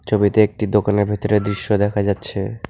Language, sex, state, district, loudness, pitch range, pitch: Bengali, male, West Bengal, Alipurduar, -19 LUFS, 100-105 Hz, 105 Hz